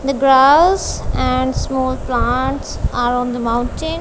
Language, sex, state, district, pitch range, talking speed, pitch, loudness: English, female, Punjab, Kapurthala, 245-275 Hz, 135 wpm, 260 Hz, -16 LUFS